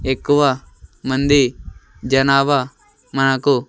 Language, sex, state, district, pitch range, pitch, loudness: Telugu, male, Andhra Pradesh, Sri Satya Sai, 120-140 Hz, 135 Hz, -17 LUFS